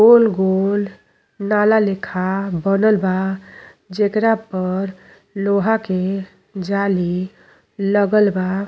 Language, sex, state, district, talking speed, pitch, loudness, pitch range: Bhojpuri, female, Uttar Pradesh, Deoria, 85 wpm, 195 Hz, -18 LUFS, 190-210 Hz